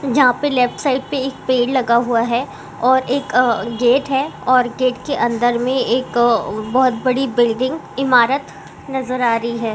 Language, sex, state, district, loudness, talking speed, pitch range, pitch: Hindi, female, Andhra Pradesh, Visakhapatnam, -17 LUFS, 185 wpm, 235-265 Hz, 255 Hz